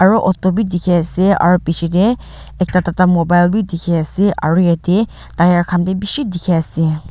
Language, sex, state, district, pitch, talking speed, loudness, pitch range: Nagamese, female, Nagaland, Dimapur, 180 Hz, 160 wpm, -15 LUFS, 170-190 Hz